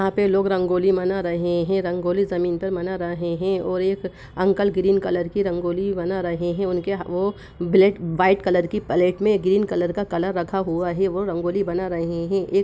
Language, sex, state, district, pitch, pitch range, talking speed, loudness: Hindi, female, Bihar, Lakhisarai, 185 Hz, 175-195 Hz, 220 wpm, -22 LUFS